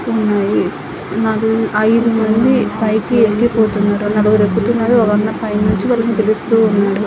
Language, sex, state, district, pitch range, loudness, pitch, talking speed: Telugu, female, Andhra Pradesh, Anantapur, 210-225 Hz, -14 LUFS, 215 Hz, 135 wpm